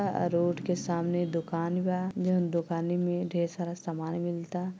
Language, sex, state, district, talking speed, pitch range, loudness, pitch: Bhojpuri, female, Uttar Pradesh, Gorakhpur, 175 wpm, 170-180 Hz, -31 LUFS, 175 Hz